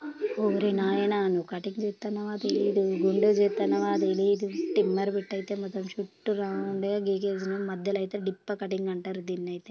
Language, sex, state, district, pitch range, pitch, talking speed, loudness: Telugu, female, Andhra Pradesh, Chittoor, 190-205 Hz, 200 Hz, 140 wpm, -29 LUFS